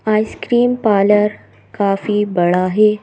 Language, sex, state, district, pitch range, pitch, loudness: Hindi, female, Madhya Pradesh, Bhopal, 195-215 Hz, 210 Hz, -15 LUFS